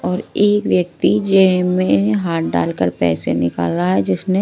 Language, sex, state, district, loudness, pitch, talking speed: Hindi, female, Maharashtra, Gondia, -16 LUFS, 100 Hz, 165 wpm